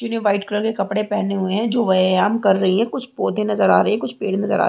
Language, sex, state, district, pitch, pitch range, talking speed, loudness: Hindi, female, Chhattisgarh, Rajnandgaon, 205 Hz, 195-220 Hz, 305 wpm, -19 LUFS